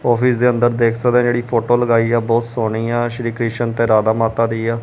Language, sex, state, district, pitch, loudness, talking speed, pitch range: Punjabi, male, Punjab, Kapurthala, 115 Hz, -16 LUFS, 250 wpm, 115-120 Hz